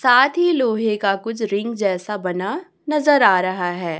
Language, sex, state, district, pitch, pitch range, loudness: Hindi, female, Chhattisgarh, Raipur, 220 Hz, 190-265 Hz, -19 LUFS